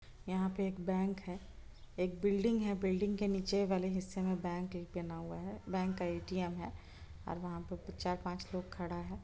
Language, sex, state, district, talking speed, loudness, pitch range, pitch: Hindi, female, Bihar, Muzaffarpur, 195 wpm, -38 LUFS, 175-190 Hz, 185 Hz